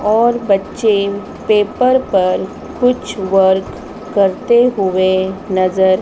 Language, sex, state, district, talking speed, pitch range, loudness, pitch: Hindi, female, Madhya Pradesh, Dhar, 90 wpm, 190-230 Hz, -14 LUFS, 200 Hz